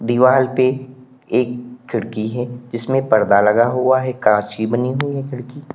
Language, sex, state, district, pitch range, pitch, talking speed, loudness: Hindi, male, Uttar Pradesh, Lalitpur, 115-130 Hz, 125 Hz, 165 wpm, -17 LUFS